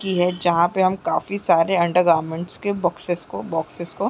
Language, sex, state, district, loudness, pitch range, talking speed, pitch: Hindi, female, Chhattisgarh, Raigarh, -21 LUFS, 170-185 Hz, 220 wpm, 175 Hz